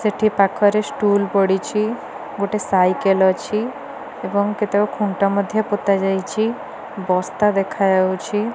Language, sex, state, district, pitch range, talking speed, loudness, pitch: Odia, female, Odisha, Nuapada, 195-210 Hz, 110 wpm, -19 LUFS, 205 Hz